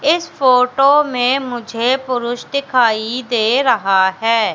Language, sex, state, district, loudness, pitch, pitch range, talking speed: Hindi, female, Madhya Pradesh, Katni, -15 LUFS, 250 Hz, 230-270 Hz, 120 wpm